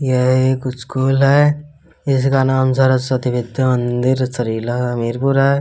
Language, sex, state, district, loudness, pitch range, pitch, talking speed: Hindi, male, Uttar Pradesh, Hamirpur, -16 LUFS, 125-135 Hz, 130 Hz, 130 wpm